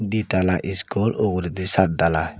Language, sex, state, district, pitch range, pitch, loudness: Chakma, male, Tripura, Dhalai, 90-100 Hz, 95 Hz, -21 LUFS